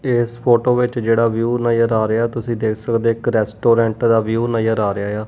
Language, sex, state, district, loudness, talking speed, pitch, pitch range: Punjabi, male, Punjab, Kapurthala, -17 LUFS, 240 wpm, 115 Hz, 110-120 Hz